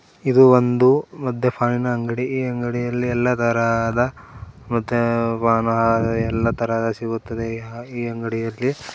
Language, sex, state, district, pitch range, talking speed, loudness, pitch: Kannada, male, Karnataka, Koppal, 115-125 Hz, 105 wpm, -20 LUFS, 120 Hz